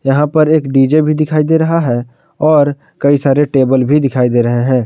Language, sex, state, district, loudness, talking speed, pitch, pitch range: Hindi, male, Jharkhand, Garhwa, -12 LUFS, 220 wpm, 145 Hz, 130-155 Hz